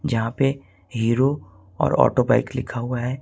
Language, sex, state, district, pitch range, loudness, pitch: Hindi, male, Jharkhand, Ranchi, 115-130 Hz, -22 LUFS, 125 Hz